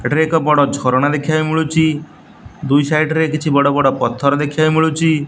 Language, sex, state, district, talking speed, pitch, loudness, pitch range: Odia, male, Odisha, Nuapada, 195 wpm, 155 Hz, -15 LUFS, 145-160 Hz